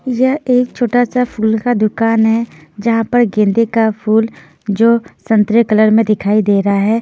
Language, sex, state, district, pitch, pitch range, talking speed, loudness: Hindi, female, Chandigarh, Chandigarh, 225 Hz, 215-240 Hz, 180 wpm, -13 LUFS